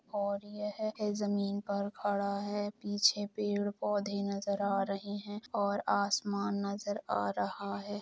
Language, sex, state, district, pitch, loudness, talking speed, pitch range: Hindi, female, Jharkhand, Jamtara, 200 Hz, -34 LUFS, 140 wpm, 200-205 Hz